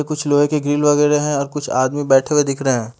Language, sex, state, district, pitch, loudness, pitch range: Hindi, male, Haryana, Charkhi Dadri, 145 Hz, -17 LUFS, 135-150 Hz